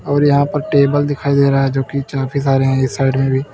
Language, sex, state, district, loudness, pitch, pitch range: Hindi, male, Uttar Pradesh, Lalitpur, -15 LUFS, 140 Hz, 135-145 Hz